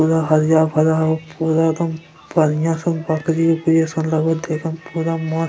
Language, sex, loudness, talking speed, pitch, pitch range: Angika, male, -18 LUFS, 165 wpm, 160 Hz, 160-165 Hz